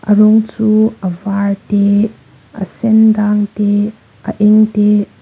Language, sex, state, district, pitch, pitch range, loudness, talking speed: Mizo, female, Mizoram, Aizawl, 210 Hz, 205-220 Hz, -12 LUFS, 150 wpm